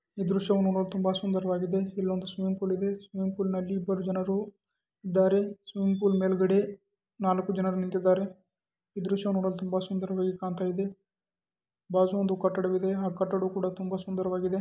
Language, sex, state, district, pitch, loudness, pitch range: Kannada, male, Karnataka, Chamarajanagar, 190 Hz, -29 LUFS, 185-195 Hz